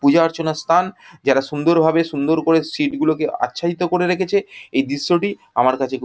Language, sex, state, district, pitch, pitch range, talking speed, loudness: Bengali, male, West Bengal, Jhargram, 165 Hz, 145-180 Hz, 180 wpm, -19 LUFS